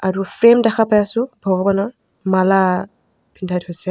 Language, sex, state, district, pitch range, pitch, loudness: Assamese, female, Assam, Kamrup Metropolitan, 185-225 Hz, 195 Hz, -16 LUFS